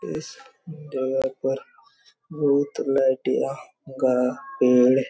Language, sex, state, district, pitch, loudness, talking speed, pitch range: Hindi, male, Chhattisgarh, Raigarh, 135 Hz, -23 LUFS, 80 wpm, 130-165 Hz